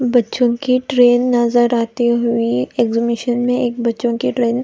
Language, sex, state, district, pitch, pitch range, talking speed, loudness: Hindi, female, Chhattisgarh, Raigarh, 240 Hz, 235-245 Hz, 170 wpm, -16 LUFS